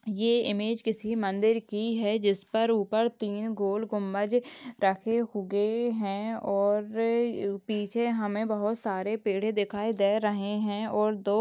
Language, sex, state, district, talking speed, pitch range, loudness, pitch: Hindi, female, Chhattisgarh, Sukma, 145 wpm, 205-225 Hz, -28 LUFS, 215 Hz